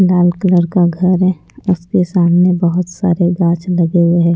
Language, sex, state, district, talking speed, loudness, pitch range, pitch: Hindi, female, Punjab, Pathankot, 180 wpm, -13 LUFS, 175-185 Hz, 175 Hz